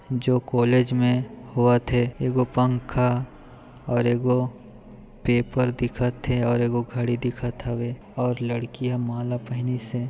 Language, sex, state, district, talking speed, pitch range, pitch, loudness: Chhattisgarhi, male, Chhattisgarh, Sarguja, 135 wpm, 120-125 Hz, 125 Hz, -24 LUFS